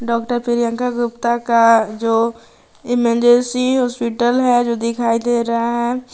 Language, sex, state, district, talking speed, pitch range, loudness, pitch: Hindi, female, Jharkhand, Palamu, 125 wpm, 230-245 Hz, -16 LUFS, 235 Hz